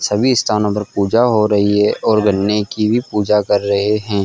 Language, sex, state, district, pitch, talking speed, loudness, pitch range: Hindi, male, Jharkhand, Jamtara, 105 Hz, 210 wpm, -15 LUFS, 105-110 Hz